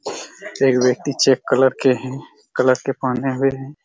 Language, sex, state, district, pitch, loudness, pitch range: Hindi, male, Chhattisgarh, Raigarh, 130 Hz, -18 LUFS, 130-135 Hz